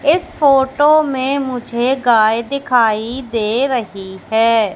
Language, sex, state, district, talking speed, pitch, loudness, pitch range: Hindi, female, Madhya Pradesh, Katni, 115 wpm, 250 Hz, -15 LUFS, 225-275 Hz